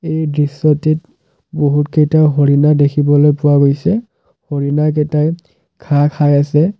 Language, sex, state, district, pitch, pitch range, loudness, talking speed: Assamese, male, Assam, Kamrup Metropolitan, 150 Hz, 145-155 Hz, -13 LUFS, 95 wpm